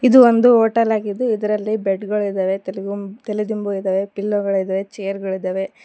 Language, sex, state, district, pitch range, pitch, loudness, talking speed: Kannada, female, Karnataka, Koppal, 195-215 Hz, 205 Hz, -19 LUFS, 155 wpm